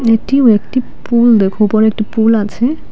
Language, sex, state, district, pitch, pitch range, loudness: Bengali, female, Assam, Hailakandi, 225 Hz, 215-240 Hz, -12 LUFS